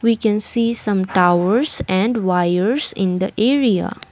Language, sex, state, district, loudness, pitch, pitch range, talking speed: English, female, Assam, Kamrup Metropolitan, -16 LUFS, 210 Hz, 185-230 Hz, 145 wpm